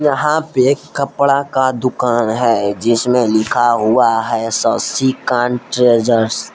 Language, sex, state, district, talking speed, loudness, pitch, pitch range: Hindi, male, Jharkhand, Palamu, 130 wpm, -15 LUFS, 120 Hz, 115-130 Hz